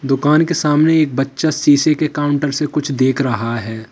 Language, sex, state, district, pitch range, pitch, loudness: Hindi, male, Uttar Pradesh, Lalitpur, 135-155 Hz, 145 Hz, -15 LUFS